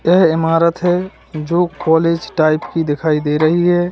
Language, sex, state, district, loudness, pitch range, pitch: Hindi, male, Uttar Pradesh, Lalitpur, -15 LUFS, 155-175 Hz, 165 Hz